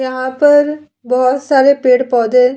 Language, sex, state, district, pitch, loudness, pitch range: Hindi, female, Uttar Pradesh, Jalaun, 260 Hz, -12 LUFS, 255-280 Hz